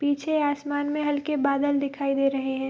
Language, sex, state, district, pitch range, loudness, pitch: Hindi, female, Bihar, Madhepura, 275-290 Hz, -25 LUFS, 285 Hz